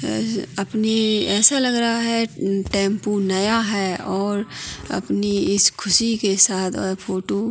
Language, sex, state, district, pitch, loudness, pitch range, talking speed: Hindi, female, Uttarakhand, Tehri Garhwal, 205 Hz, -19 LUFS, 195-220 Hz, 145 wpm